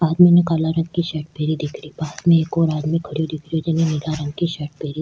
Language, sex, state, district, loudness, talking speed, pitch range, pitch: Rajasthani, female, Rajasthan, Churu, -20 LUFS, 275 wpm, 150-165 Hz, 160 Hz